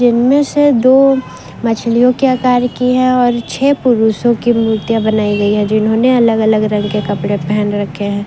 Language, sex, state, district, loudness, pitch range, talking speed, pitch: Hindi, female, Jharkhand, Ranchi, -12 LUFS, 210-250 Hz, 180 wpm, 230 Hz